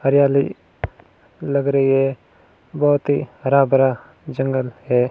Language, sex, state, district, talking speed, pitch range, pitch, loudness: Hindi, male, Rajasthan, Barmer, 115 wpm, 130-140 Hz, 135 Hz, -18 LUFS